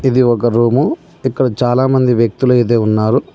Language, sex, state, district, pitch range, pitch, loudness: Telugu, male, Telangana, Mahabubabad, 115-130 Hz, 120 Hz, -13 LUFS